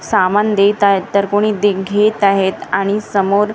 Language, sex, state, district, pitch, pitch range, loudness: Marathi, female, Maharashtra, Gondia, 200 Hz, 195-210 Hz, -14 LUFS